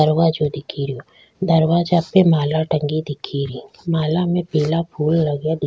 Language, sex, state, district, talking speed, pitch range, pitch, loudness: Rajasthani, female, Rajasthan, Churu, 170 wpm, 150-165 Hz, 155 Hz, -19 LUFS